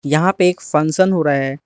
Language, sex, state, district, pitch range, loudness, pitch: Hindi, male, Arunachal Pradesh, Lower Dibang Valley, 145-180 Hz, -16 LUFS, 155 Hz